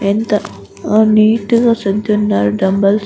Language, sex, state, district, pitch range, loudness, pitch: Telugu, female, Andhra Pradesh, Guntur, 195-215 Hz, -13 LUFS, 210 Hz